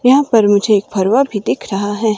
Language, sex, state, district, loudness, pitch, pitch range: Hindi, female, Himachal Pradesh, Shimla, -14 LUFS, 210 Hz, 205-230 Hz